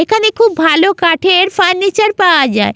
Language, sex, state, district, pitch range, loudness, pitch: Bengali, female, West Bengal, Malda, 335-420 Hz, -10 LUFS, 375 Hz